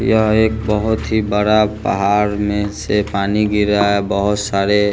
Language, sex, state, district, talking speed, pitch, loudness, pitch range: Hindi, male, Bihar, West Champaran, 185 wpm, 105 Hz, -16 LUFS, 100-105 Hz